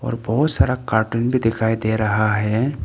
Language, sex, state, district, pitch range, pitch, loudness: Hindi, male, Arunachal Pradesh, Papum Pare, 110-125 Hz, 110 Hz, -19 LUFS